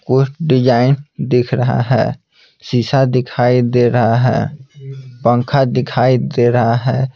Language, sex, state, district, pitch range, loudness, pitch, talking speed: Hindi, male, Bihar, Patna, 120-135 Hz, -14 LUFS, 125 Hz, 125 wpm